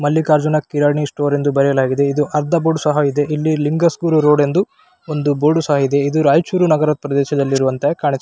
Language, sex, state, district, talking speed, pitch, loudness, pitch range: Kannada, male, Karnataka, Raichur, 170 wpm, 150 Hz, -16 LUFS, 140-155 Hz